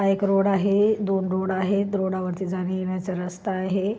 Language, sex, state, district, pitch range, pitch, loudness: Marathi, female, Maharashtra, Solapur, 185-195 Hz, 190 Hz, -24 LUFS